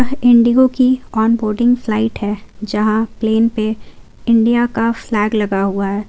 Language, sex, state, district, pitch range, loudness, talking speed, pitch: Hindi, female, Jharkhand, Garhwa, 215-235 Hz, -15 LUFS, 150 wpm, 225 Hz